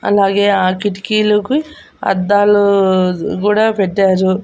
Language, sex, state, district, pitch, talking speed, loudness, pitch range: Telugu, female, Andhra Pradesh, Annamaya, 200 Hz, 80 wpm, -14 LUFS, 190-210 Hz